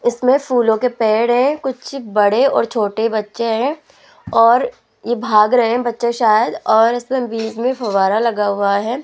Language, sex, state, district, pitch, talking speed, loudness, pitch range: Hindi, female, Rajasthan, Jaipur, 235 Hz, 170 wpm, -16 LUFS, 215-250 Hz